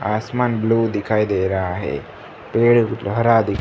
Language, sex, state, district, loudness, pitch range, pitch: Hindi, male, Gujarat, Gandhinagar, -19 LUFS, 100-115 Hz, 110 Hz